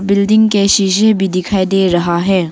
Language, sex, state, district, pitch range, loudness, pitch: Hindi, female, Arunachal Pradesh, Longding, 185-200 Hz, -12 LUFS, 195 Hz